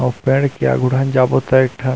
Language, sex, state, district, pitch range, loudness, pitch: Chhattisgarhi, male, Chhattisgarh, Rajnandgaon, 130-135 Hz, -15 LUFS, 130 Hz